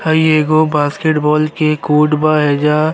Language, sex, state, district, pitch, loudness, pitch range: Bhojpuri, male, Uttar Pradesh, Deoria, 155 Hz, -13 LUFS, 150-155 Hz